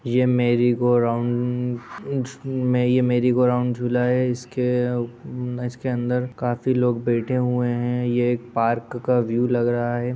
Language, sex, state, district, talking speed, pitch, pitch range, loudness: Hindi, male, Chhattisgarh, Sarguja, 150 wpm, 125 Hz, 120-125 Hz, -22 LUFS